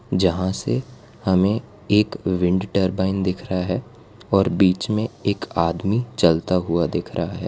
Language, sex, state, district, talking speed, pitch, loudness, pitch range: Hindi, female, Gujarat, Valsad, 150 wpm, 95 Hz, -21 LUFS, 90-105 Hz